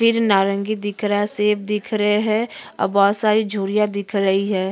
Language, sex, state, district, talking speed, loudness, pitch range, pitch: Hindi, female, Uttarakhand, Tehri Garhwal, 205 wpm, -19 LUFS, 200-215 Hz, 205 Hz